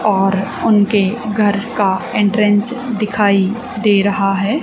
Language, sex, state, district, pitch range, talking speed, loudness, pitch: Hindi, female, Haryana, Charkhi Dadri, 195-215 Hz, 115 wpm, -15 LUFS, 205 Hz